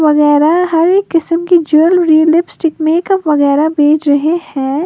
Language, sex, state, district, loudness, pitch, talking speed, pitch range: Hindi, female, Uttar Pradesh, Lalitpur, -11 LUFS, 315 Hz, 150 wpm, 300-340 Hz